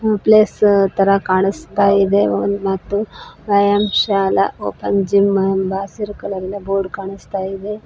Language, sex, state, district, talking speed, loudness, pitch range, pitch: Kannada, female, Karnataka, Koppal, 120 wpm, -16 LUFS, 195-205 Hz, 195 Hz